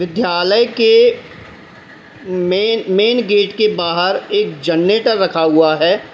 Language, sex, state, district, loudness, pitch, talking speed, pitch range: Hindi, male, Uttar Pradesh, Lalitpur, -14 LUFS, 195 Hz, 115 wpm, 175-225 Hz